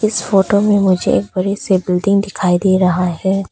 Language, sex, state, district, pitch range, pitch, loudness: Hindi, female, Arunachal Pradesh, Papum Pare, 185-200 Hz, 190 Hz, -15 LUFS